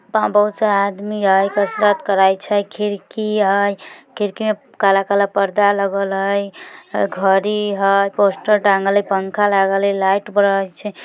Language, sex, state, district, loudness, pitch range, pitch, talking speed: Bajjika, female, Bihar, Vaishali, -17 LUFS, 195-205 Hz, 200 Hz, 140 wpm